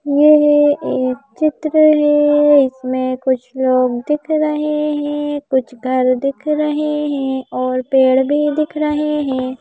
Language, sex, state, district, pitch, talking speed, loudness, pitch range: Hindi, female, Madhya Pradesh, Bhopal, 290 Hz, 135 wpm, -15 LUFS, 260-300 Hz